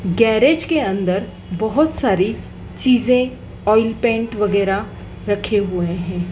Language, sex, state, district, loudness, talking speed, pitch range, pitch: Hindi, female, Madhya Pradesh, Dhar, -18 LUFS, 115 wpm, 195-240 Hz, 215 Hz